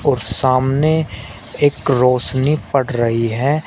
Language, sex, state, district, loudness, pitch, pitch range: Hindi, male, Uttar Pradesh, Shamli, -16 LUFS, 130 Hz, 120-145 Hz